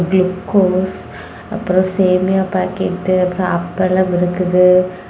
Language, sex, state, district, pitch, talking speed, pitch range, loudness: Tamil, female, Tamil Nadu, Kanyakumari, 185 Hz, 80 wpm, 180-185 Hz, -15 LUFS